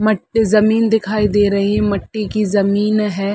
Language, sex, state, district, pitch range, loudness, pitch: Hindi, female, Chhattisgarh, Sarguja, 205-215 Hz, -16 LUFS, 210 Hz